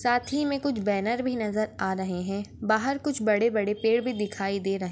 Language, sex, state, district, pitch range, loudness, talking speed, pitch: Hindi, female, Maharashtra, Dhule, 200-245 Hz, -27 LUFS, 245 wpm, 215 Hz